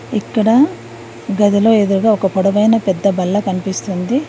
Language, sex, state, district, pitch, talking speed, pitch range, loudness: Telugu, female, Telangana, Mahabubabad, 205 Hz, 110 wpm, 195-220 Hz, -15 LUFS